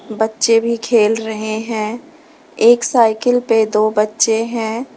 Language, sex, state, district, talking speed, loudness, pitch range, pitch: Hindi, female, Uttar Pradesh, Lalitpur, 135 wpm, -15 LUFS, 220-240 Hz, 225 Hz